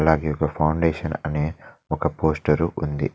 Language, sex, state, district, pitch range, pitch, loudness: Telugu, male, Telangana, Mahabubabad, 75-80 Hz, 75 Hz, -23 LUFS